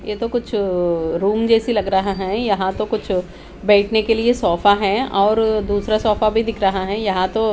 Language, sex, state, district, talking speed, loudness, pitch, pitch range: Hindi, female, Haryana, Charkhi Dadri, 215 wpm, -18 LUFS, 205 Hz, 195-220 Hz